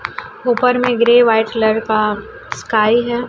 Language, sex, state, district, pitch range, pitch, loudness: Hindi, female, Chhattisgarh, Raipur, 220-245 Hz, 235 Hz, -14 LUFS